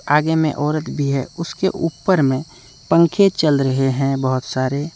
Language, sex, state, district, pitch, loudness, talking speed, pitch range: Hindi, male, Jharkhand, Deoghar, 145 Hz, -18 LUFS, 170 wpm, 135-165 Hz